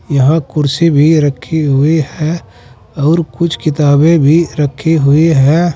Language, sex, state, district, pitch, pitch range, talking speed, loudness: Hindi, male, Uttar Pradesh, Saharanpur, 150 Hz, 140-165 Hz, 135 wpm, -11 LUFS